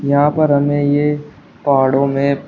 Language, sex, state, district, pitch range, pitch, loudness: Hindi, male, Uttar Pradesh, Shamli, 140-145 Hz, 145 Hz, -15 LUFS